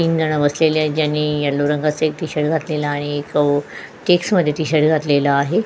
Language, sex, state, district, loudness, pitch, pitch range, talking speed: Marathi, female, Goa, North and South Goa, -18 LUFS, 150 Hz, 145-155 Hz, 180 wpm